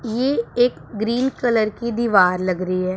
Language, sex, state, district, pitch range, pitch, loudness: Hindi, female, Punjab, Pathankot, 185-245 Hz, 230 Hz, -20 LUFS